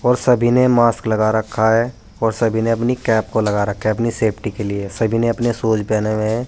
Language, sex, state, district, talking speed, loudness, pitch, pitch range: Hindi, male, Uttar Pradesh, Saharanpur, 250 wpm, -18 LUFS, 110 Hz, 110-120 Hz